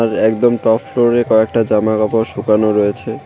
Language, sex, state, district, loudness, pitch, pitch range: Bengali, male, West Bengal, Cooch Behar, -14 LUFS, 110 Hz, 110-115 Hz